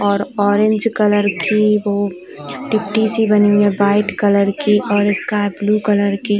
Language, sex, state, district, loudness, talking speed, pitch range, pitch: Hindi, female, Uttar Pradesh, Varanasi, -15 LUFS, 150 wpm, 205-210 Hz, 205 Hz